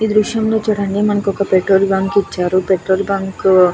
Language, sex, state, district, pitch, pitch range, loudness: Telugu, female, Andhra Pradesh, Krishna, 195 Hz, 190-205 Hz, -15 LUFS